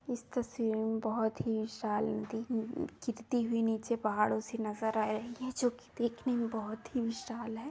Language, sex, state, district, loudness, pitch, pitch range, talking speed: Hindi, female, Bihar, Jamui, -35 LUFS, 230 Hz, 220-240 Hz, 185 wpm